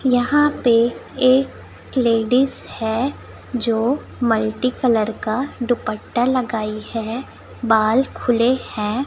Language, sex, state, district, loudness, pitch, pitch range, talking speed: Hindi, female, Chhattisgarh, Raipur, -19 LUFS, 240 Hz, 225-255 Hz, 100 wpm